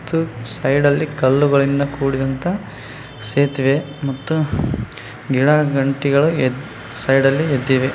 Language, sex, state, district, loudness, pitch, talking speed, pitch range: Kannada, male, Karnataka, Bijapur, -18 LUFS, 140 Hz, 70 wpm, 130-145 Hz